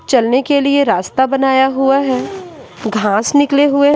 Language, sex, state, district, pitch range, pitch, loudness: Hindi, female, Bihar, Patna, 250-285 Hz, 270 Hz, -13 LUFS